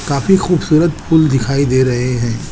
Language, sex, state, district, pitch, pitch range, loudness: Hindi, male, Chandigarh, Chandigarh, 140 Hz, 125-160 Hz, -14 LUFS